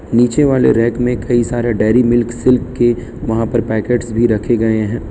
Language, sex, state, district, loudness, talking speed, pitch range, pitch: Hindi, male, Gujarat, Valsad, -14 LUFS, 200 wpm, 115-120 Hz, 120 Hz